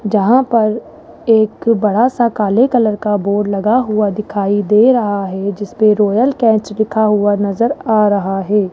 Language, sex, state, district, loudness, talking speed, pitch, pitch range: Hindi, male, Rajasthan, Jaipur, -14 LUFS, 165 wpm, 215 Hz, 205-230 Hz